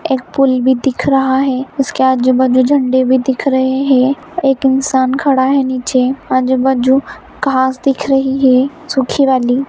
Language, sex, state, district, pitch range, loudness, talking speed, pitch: Hindi, female, Bihar, Saran, 260-270 Hz, -13 LUFS, 165 wpm, 265 Hz